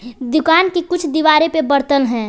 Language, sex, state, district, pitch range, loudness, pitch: Hindi, female, Jharkhand, Palamu, 275-325 Hz, -14 LUFS, 310 Hz